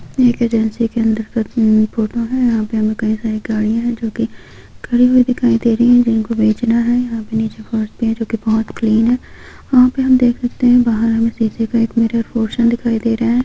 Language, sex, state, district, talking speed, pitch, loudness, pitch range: Hindi, female, Jharkhand, Jamtara, 230 wpm, 230 Hz, -15 LUFS, 220-240 Hz